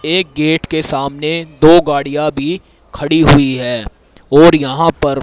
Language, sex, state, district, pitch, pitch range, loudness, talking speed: Hindi, male, Haryana, Rohtak, 150 Hz, 140-160 Hz, -12 LUFS, 150 wpm